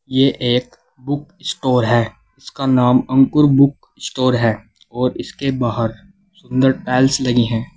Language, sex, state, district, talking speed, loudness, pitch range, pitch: Hindi, male, Uttar Pradesh, Saharanpur, 140 wpm, -17 LUFS, 120-135 Hz, 130 Hz